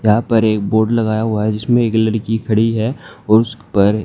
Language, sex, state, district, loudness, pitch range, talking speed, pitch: Hindi, male, Haryana, Jhajjar, -16 LUFS, 105-115 Hz, 220 wpm, 110 Hz